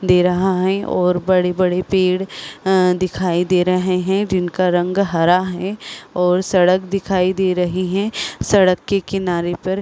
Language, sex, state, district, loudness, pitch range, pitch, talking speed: Hindi, female, Chhattisgarh, Rajnandgaon, -17 LUFS, 180-190 Hz, 185 Hz, 155 wpm